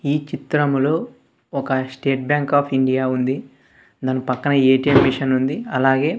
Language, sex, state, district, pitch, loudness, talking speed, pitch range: Telugu, male, Andhra Pradesh, Sri Satya Sai, 135 Hz, -19 LUFS, 125 wpm, 130-145 Hz